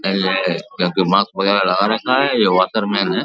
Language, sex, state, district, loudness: Hindi, male, Uttar Pradesh, Jalaun, -17 LUFS